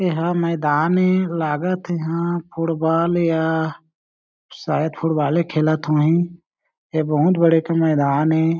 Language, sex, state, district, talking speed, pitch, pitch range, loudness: Chhattisgarhi, male, Chhattisgarh, Jashpur, 130 wpm, 165 Hz, 155-170 Hz, -19 LUFS